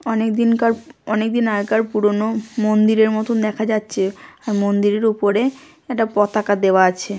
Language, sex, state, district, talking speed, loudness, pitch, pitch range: Bengali, female, West Bengal, Kolkata, 135 wpm, -18 LUFS, 215 Hz, 205-225 Hz